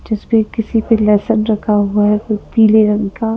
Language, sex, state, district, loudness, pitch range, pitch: Hindi, female, Madhya Pradesh, Bhopal, -14 LUFS, 210-225 Hz, 215 Hz